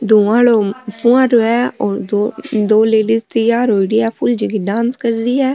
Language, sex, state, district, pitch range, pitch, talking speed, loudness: Marwari, female, Rajasthan, Nagaur, 215-240 Hz, 225 Hz, 175 wpm, -14 LUFS